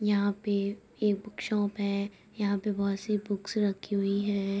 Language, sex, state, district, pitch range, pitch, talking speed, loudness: Hindi, female, Uttar Pradesh, Budaun, 200-210 Hz, 200 Hz, 195 wpm, -31 LUFS